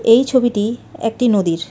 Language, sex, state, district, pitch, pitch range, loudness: Bengali, female, West Bengal, Darjeeling, 230 Hz, 205-245 Hz, -16 LUFS